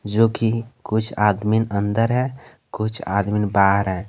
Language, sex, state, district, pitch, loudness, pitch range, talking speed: Hindi, male, Jharkhand, Garhwa, 105 Hz, -20 LUFS, 100-115 Hz, 145 wpm